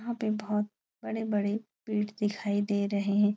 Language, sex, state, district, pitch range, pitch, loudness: Hindi, female, Uttar Pradesh, Etah, 205-215 Hz, 210 Hz, -31 LUFS